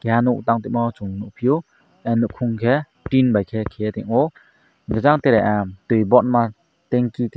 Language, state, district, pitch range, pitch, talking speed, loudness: Kokborok, Tripura, Dhalai, 110-125 Hz, 120 Hz, 165 wpm, -20 LUFS